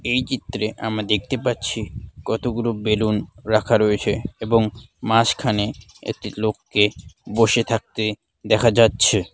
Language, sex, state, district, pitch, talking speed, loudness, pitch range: Bengali, male, West Bengal, Dakshin Dinajpur, 110 Hz, 110 wpm, -21 LUFS, 105-115 Hz